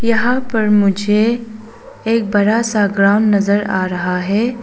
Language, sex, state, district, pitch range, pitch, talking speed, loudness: Hindi, female, Arunachal Pradesh, Papum Pare, 200-230 Hz, 210 Hz, 140 wpm, -15 LUFS